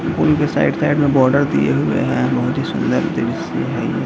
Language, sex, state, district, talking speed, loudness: Hindi, male, Bihar, Gaya, 190 wpm, -17 LUFS